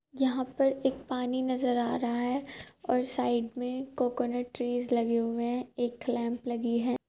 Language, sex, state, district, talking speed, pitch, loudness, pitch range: Hindi, male, Uttar Pradesh, Jyotiba Phule Nagar, 180 wpm, 245 Hz, -31 LUFS, 240-260 Hz